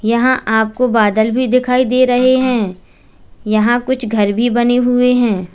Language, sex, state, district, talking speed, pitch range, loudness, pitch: Hindi, female, Uttar Pradesh, Lalitpur, 160 wpm, 220-250 Hz, -14 LUFS, 240 Hz